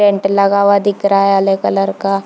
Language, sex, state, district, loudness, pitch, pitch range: Hindi, female, Chhattisgarh, Bilaspur, -13 LUFS, 195 Hz, 195-200 Hz